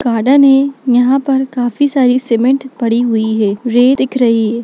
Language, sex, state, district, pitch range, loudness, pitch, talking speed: Hindi, female, Bihar, Jamui, 235-270 Hz, -12 LUFS, 250 Hz, 180 wpm